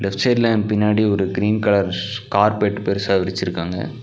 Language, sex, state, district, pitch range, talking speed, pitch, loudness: Tamil, male, Tamil Nadu, Nilgiris, 95-105 Hz, 150 wpm, 100 Hz, -19 LUFS